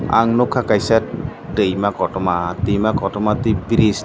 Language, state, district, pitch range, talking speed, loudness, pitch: Kokborok, Tripura, Dhalai, 100-115 Hz, 150 wpm, -18 LUFS, 105 Hz